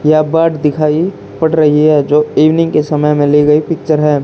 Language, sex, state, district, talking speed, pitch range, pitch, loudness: Hindi, male, Haryana, Charkhi Dadri, 210 wpm, 150-160 Hz, 150 Hz, -11 LUFS